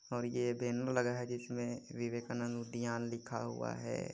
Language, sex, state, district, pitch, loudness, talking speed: Hindi, male, Chhattisgarh, Jashpur, 120 Hz, -39 LUFS, 160 wpm